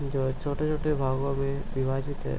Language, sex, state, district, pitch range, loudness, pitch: Hindi, male, Bihar, Gopalganj, 135-145 Hz, -29 LUFS, 140 Hz